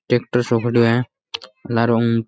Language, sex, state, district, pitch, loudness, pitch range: Rajasthani, male, Rajasthan, Nagaur, 115 Hz, -19 LUFS, 115-120 Hz